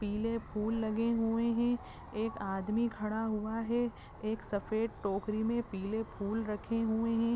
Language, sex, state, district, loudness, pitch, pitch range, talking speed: Hindi, female, Uttar Pradesh, Jyotiba Phule Nagar, -35 LUFS, 225 Hz, 210-230 Hz, 155 wpm